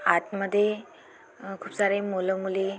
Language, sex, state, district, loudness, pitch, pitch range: Marathi, female, Maharashtra, Aurangabad, -27 LUFS, 195 Hz, 190-205 Hz